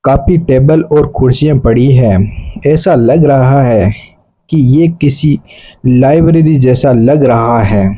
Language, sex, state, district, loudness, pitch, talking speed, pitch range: Hindi, male, Rajasthan, Bikaner, -9 LUFS, 135 Hz, 135 wpm, 115-150 Hz